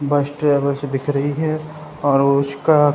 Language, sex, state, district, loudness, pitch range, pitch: Hindi, male, Bihar, Samastipur, -19 LUFS, 140-150 Hz, 145 Hz